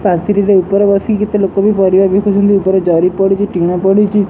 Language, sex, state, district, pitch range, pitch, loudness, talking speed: Odia, male, Odisha, Sambalpur, 190-205 Hz, 195 Hz, -11 LUFS, 165 wpm